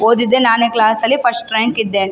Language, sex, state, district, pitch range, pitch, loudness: Kannada, female, Karnataka, Raichur, 220-235 Hz, 230 Hz, -14 LUFS